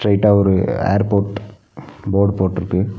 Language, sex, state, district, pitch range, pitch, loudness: Tamil, male, Tamil Nadu, Nilgiris, 95-100 Hz, 100 Hz, -17 LUFS